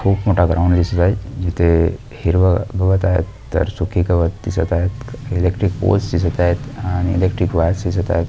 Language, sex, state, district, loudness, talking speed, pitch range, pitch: Marathi, male, Maharashtra, Solapur, -18 LUFS, 165 wpm, 85-100 Hz, 90 Hz